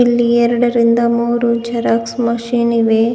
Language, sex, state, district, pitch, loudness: Kannada, female, Karnataka, Bidar, 235 Hz, -14 LUFS